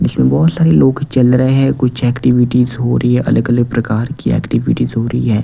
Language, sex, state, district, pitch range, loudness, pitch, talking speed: Hindi, male, Delhi, New Delhi, 120-130 Hz, -13 LUFS, 125 Hz, 210 wpm